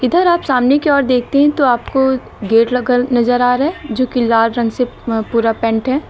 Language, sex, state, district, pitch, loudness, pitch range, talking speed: Hindi, female, Uttar Pradesh, Lucknow, 250 Hz, -14 LUFS, 235-270 Hz, 225 wpm